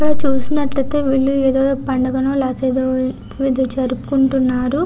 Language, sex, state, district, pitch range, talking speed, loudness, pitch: Telugu, female, Andhra Pradesh, Visakhapatnam, 260-275 Hz, 110 wpm, -18 LUFS, 265 Hz